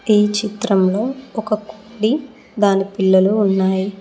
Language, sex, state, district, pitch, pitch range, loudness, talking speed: Telugu, female, Telangana, Mahabubabad, 210 Hz, 195-220 Hz, -17 LUFS, 105 wpm